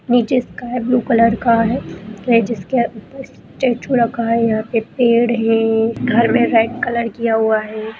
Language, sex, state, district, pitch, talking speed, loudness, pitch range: Hindi, female, Bihar, Jamui, 230 Hz, 165 wpm, -16 LUFS, 225-245 Hz